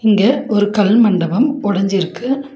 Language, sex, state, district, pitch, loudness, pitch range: Tamil, female, Tamil Nadu, Nilgiris, 210 Hz, -15 LUFS, 200-265 Hz